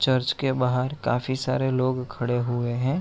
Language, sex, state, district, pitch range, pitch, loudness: Hindi, male, Bihar, Araria, 120-130 Hz, 130 Hz, -25 LUFS